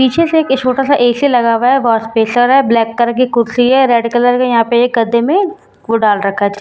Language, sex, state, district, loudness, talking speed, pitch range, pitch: Hindi, female, Bihar, Katihar, -12 LUFS, 265 wpm, 230-265 Hz, 245 Hz